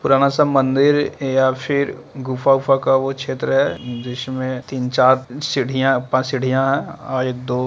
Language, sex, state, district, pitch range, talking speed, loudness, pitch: Hindi, male, Bihar, Gaya, 130-135 Hz, 150 wpm, -18 LUFS, 130 Hz